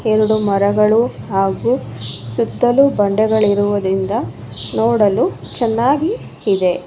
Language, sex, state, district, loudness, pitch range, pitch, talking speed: Kannada, female, Karnataka, Bangalore, -16 LUFS, 190-225 Hz, 205 Hz, 70 wpm